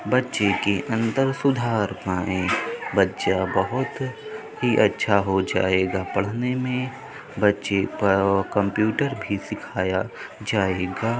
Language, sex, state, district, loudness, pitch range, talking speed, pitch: Hindi, male, Uttar Pradesh, Budaun, -23 LUFS, 95-125 Hz, 95 wpm, 105 Hz